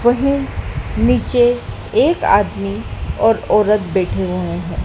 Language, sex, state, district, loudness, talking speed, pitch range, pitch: Hindi, female, Madhya Pradesh, Dhar, -17 LUFS, 110 wpm, 185-240 Hz, 210 Hz